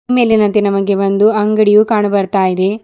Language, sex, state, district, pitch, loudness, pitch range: Kannada, female, Karnataka, Bidar, 210 Hz, -12 LUFS, 195-215 Hz